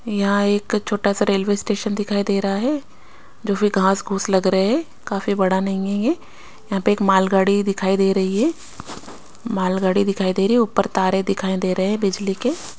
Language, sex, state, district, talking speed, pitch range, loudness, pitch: Hindi, female, Chandigarh, Chandigarh, 190 wpm, 195-210 Hz, -20 LUFS, 200 Hz